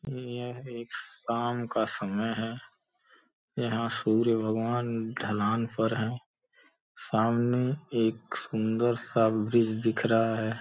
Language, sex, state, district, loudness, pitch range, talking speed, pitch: Hindi, male, Uttar Pradesh, Gorakhpur, -29 LUFS, 110-120 Hz, 105 wpm, 115 Hz